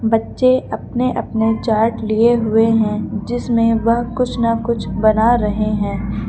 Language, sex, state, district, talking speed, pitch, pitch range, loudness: Hindi, female, Uttar Pradesh, Lucknow, 145 wpm, 225 Hz, 215-235 Hz, -17 LUFS